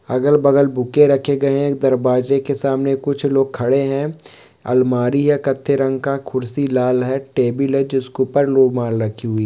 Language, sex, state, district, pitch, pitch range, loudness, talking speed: Hindi, male, West Bengal, North 24 Parganas, 135 Hz, 125-140 Hz, -17 LUFS, 185 wpm